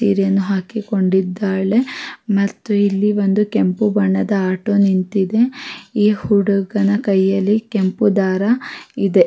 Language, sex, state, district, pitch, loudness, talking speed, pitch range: Kannada, female, Karnataka, Raichur, 200 Hz, -17 LUFS, 95 wpm, 195-210 Hz